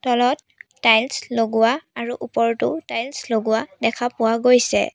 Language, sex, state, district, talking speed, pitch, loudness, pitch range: Assamese, female, Assam, Sonitpur, 120 wpm, 235 Hz, -20 LUFS, 225-250 Hz